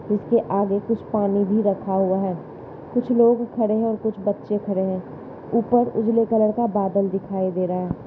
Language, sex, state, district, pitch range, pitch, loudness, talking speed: Hindi, female, Uttar Pradesh, Jalaun, 195-230 Hz, 210 Hz, -22 LUFS, 195 wpm